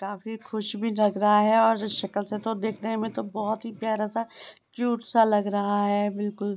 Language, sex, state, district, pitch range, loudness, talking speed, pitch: Hindi, female, Bihar, Begusarai, 205-225 Hz, -26 LUFS, 220 wpm, 215 Hz